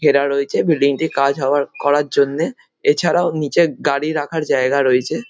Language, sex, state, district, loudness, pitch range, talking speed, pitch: Bengali, male, West Bengal, Malda, -17 LUFS, 140-160 Hz, 135 wpm, 145 Hz